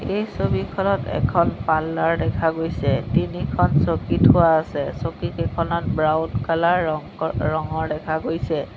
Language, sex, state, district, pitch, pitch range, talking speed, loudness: Assamese, female, Assam, Sonitpur, 160 Hz, 155-165 Hz, 125 wpm, -21 LUFS